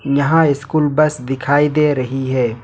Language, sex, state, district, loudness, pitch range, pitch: Hindi, male, Jharkhand, Ranchi, -16 LUFS, 130-150 Hz, 140 Hz